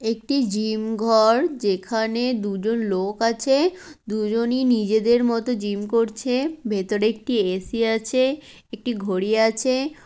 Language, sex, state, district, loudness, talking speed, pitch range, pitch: Bengali, female, West Bengal, Kolkata, -22 LUFS, 115 wpm, 215-250 Hz, 225 Hz